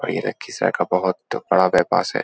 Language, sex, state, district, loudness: Hindi, male, Bihar, Lakhisarai, -20 LUFS